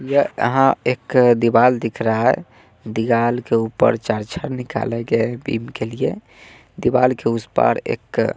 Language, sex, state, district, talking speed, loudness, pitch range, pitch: Hindi, male, Bihar, West Champaran, 165 wpm, -19 LUFS, 115-125 Hz, 120 Hz